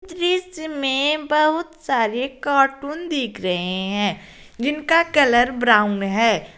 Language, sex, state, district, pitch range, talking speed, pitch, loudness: Hindi, female, Jharkhand, Garhwa, 220-305 Hz, 110 wpm, 275 Hz, -20 LUFS